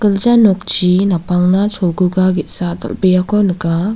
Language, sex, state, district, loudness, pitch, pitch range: Garo, female, Meghalaya, South Garo Hills, -13 LUFS, 185 Hz, 180-205 Hz